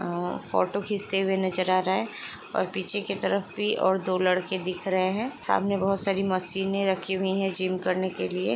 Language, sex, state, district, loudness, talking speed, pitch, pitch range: Hindi, female, Uttar Pradesh, Jalaun, -27 LUFS, 210 wpm, 190 Hz, 185-195 Hz